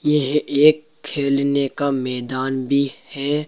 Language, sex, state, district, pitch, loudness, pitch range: Hindi, male, Uttar Pradesh, Saharanpur, 140 Hz, -20 LUFS, 135-150 Hz